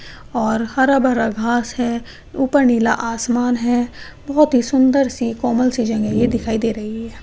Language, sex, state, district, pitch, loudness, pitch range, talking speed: Hindi, female, Bihar, East Champaran, 240 Hz, -18 LUFS, 230-255 Hz, 175 wpm